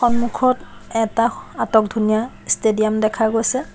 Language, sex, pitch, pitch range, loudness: Assamese, female, 225 Hz, 220-240 Hz, -19 LUFS